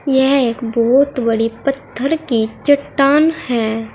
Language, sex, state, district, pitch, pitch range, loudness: Hindi, female, Uttar Pradesh, Saharanpur, 260 Hz, 230-280 Hz, -16 LUFS